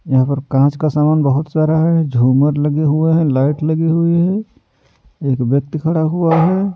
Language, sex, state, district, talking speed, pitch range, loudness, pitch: Hindi, male, Delhi, New Delhi, 185 wpm, 140-165 Hz, -15 LUFS, 155 Hz